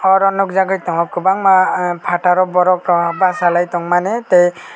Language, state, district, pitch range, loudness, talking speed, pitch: Kokborok, Tripura, West Tripura, 175-190 Hz, -14 LUFS, 150 wpm, 180 Hz